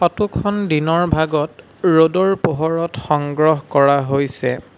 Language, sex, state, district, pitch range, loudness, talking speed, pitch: Assamese, male, Assam, Sonitpur, 140-170 Hz, -17 LUFS, 115 wpm, 160 Hz